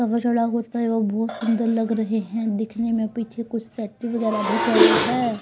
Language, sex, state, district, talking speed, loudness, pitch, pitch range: Hindi, female, Haryana, Rohtak, 155 wpm, -22 LUFS, 230 Hz, 220-235 Hz